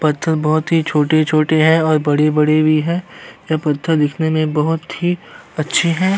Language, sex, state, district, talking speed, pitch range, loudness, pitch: Hindi, male, Uttar Pradesh, Jyotiba Phule Nagar, 165 wpm, 155-165 Hz, -16 LUFS, 155 Hz